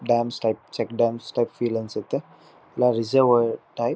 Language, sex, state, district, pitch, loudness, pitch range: Kannada, male, Karnataka, Shimoga, 120 Hz, -24 LUFS, 115-120 Hz